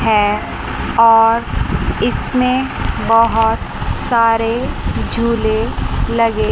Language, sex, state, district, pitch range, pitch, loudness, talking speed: Hindi, male, Chandigarh, Chandigarh, 225-235 Hz, 230 Hz, -15 LUFS, 65 wpm